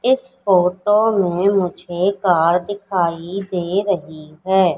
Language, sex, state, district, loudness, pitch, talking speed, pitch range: Hindi, female, Madhya Pradesh, Katni, -18 LUFS, 185 Hz, 115 wpm, 175-200 Hz